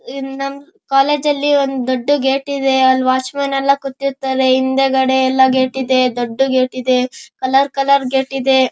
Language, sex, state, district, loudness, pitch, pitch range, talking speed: Kannada, male, Karnataka, Shimoga, -15 LUFS, 265 Hz, 260-275 Hz, 165 wpm